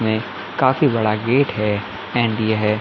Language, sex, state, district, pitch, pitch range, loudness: Hindi, male, Chhattisgarh, Bilaspur, 110 Hz, 105-120 Hz, -19 LUFS